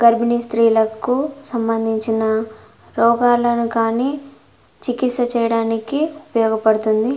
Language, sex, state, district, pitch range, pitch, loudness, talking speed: Telugu, female, Andhra Pradesh, Anantapur, 225-245 Hz, 235 Hz, -17 LUFS, 65 wpm